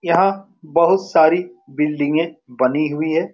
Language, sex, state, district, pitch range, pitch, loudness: Hindi, male, Bihar, Saran, 150-180 Hz, 160 Hz, -18 LUFS